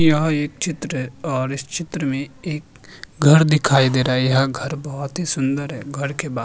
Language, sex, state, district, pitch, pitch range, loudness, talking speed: Hindi, male, Uttarakhand, Tehri Garhwal, 140 Hz, 135-155 Hz, -20 LUFS, 225 wpm